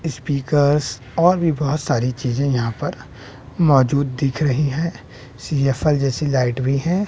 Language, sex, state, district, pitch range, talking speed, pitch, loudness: Hindi, male, Bihar, West Champaran, 130-150 Hz, 145 wpm, 140 Hz, -19 LUFS